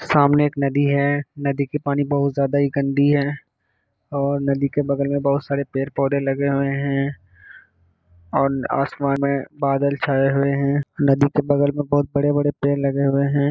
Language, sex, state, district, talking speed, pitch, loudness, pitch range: Hindi, male, Bihar, Kishanganj, 180 wpm, 140 Hz, -20 LUFS, 140-145 Hz